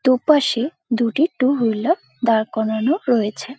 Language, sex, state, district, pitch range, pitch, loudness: Bengali, female, West Bengal, Dakshin Dinajpur, 225-280 Hz, 250 Hz, -19 LUFS